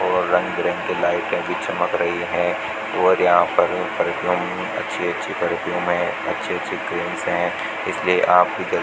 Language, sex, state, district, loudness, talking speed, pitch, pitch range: Hindi, male, Rajasthan, Bikaner, -21 LUFS, 175 wpm, 90 Hz, 90-110 Hz